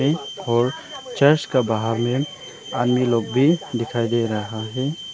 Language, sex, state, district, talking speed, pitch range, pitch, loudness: Hindi, male, Arunachal Pradesh, Longding, 140 wpm, 115-140 Hz, 125 Hz, -21 LUFS